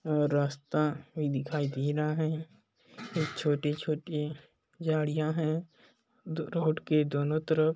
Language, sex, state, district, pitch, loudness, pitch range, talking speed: Hindi, male, Chhattisgarh, Balrampur, 155 Hz, -31 LUFS, 150-160 Hz, 140 wpm